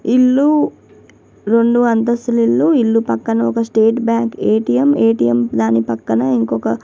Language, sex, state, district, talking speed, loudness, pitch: Telugu, female, Telangana, Nalgonda, 130 wpm, -15 LUFS, 220 Hz